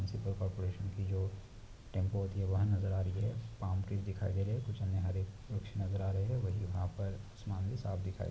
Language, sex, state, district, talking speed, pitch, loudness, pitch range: Hindi, male, Maharashtra, Pune, 230 wpm, 100 Hz, -38 LUFS, 95-105 Hz